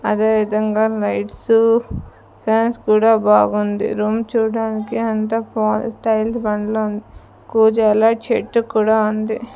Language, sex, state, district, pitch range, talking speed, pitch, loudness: Telugu, female, Andhra Pradesh, Sri Satya Sai, 215-225 Hz, 95 wpm, 220 Hz, -17 LUFS